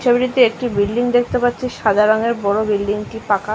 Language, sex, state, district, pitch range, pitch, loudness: Bengali, female, West Bengal, Malda, 210-245 Hz, 225 Hz, -17 LUFS